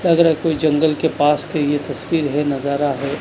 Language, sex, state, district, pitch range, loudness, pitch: Hindi, male, Punjab, Kapurthala, 145-160 Hz, -18 LUFS, 150 Hz